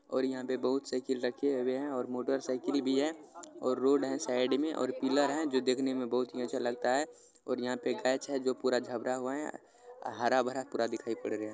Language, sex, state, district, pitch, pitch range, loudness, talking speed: Maithili, male, Bihar, Supaul, 130 Hz, 125-135 Hz, -33 LUFS, 190 wpm